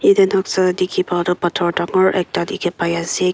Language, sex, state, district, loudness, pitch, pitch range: Nagamese, female, Nagaland, Kohima, -18 LUFS, 180 Hz, 175-185 Hz